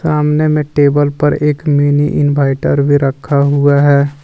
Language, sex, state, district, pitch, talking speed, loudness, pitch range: Hindi, male, Jharkhand, Deoghar, 145 Hz, 155 wpm, -12 LUFS, 140-150 Hz